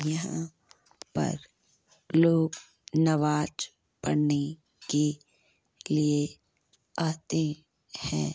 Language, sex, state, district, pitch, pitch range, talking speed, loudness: Hindi, male, Uttar Pradesh, Hamirpur, 155 Hz, 150-160 Hz, 65 wpm, -29 LUFS